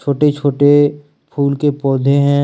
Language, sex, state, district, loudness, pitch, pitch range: Hindi, male, Jharkhand, Deoghar, -14 LUFS, 145 Hz, 140-145 Hz